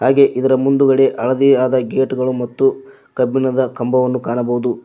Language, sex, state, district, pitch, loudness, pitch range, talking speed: Kannada, male, Karnataka, Koppal, 130 Hz, -15 LUFS, 125-135 Hz, 110 wpm